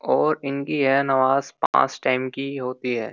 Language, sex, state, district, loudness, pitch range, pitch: Hindi, male, Uttar Pradesh, Jyotiba Phule Nagar, -22 LUFS, 125-140 Hz, 130 Hz